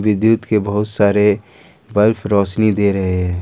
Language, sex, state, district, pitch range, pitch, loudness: Hindi, male, Jharkhand, Ranchi, 100-110 Hz, 105 Hz, -16 LUFS